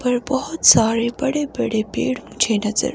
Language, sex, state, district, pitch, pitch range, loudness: Hindi, female, Himachal Pradesh, Shimla, 245 Hz, 225-275 Hz, -18 LUFS